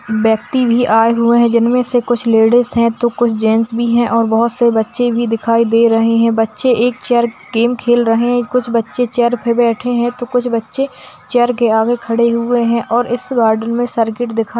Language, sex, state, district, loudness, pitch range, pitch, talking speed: Hindi, female, Bihar, Bhagalpur, -14 LUFS, 230-245 Hz, 235 Hz, 210 wpm